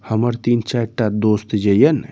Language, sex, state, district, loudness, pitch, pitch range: Maithili, male, Bihar, Saharsa, -17 LUFS, 115 Hz, 105-120 Hz